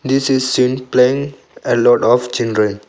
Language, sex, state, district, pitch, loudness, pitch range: English, male, Arunachal Pradesh, Longding, 125 Hz, -15 LUFS, 120-130 Hz